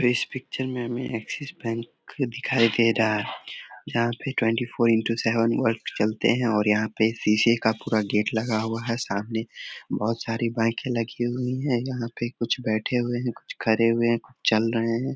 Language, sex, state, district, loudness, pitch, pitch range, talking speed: Hindi, male, Bihar, Samastipur, -25 LUFS, 115 Hz, 110-120 Hz, 195 wpm